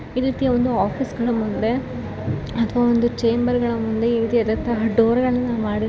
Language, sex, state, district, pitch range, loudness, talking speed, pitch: Kannada, female, Karnataka, Shimoga, 220-245 Hz, -21 LUFS, 140 wpm, 235 Hz